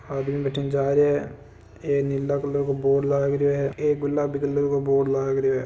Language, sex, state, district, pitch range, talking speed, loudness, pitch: Marwari, male, Rajasthan, Nagaur, 135-140 Hz, 220 wpm, -23 LUFS, 140 Hz